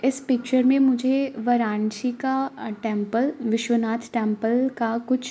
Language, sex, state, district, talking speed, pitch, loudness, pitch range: Hindi, female, Uttar Pradesh, Varanasi, 135 wpm, 245 Hz, -23 LUFS, 225-260 Hz